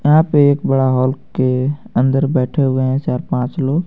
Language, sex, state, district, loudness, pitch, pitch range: Hindi, male, Jharkhand, Garhwa, -16 LUFS, 135 Hz, 130-145 Hz